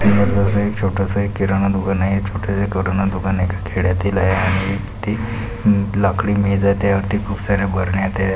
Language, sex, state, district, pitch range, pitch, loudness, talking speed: Marathi, male, Maharashtra, Pune, 95-100 Hz, 100 Hz, -18 LUFS, 185 wpm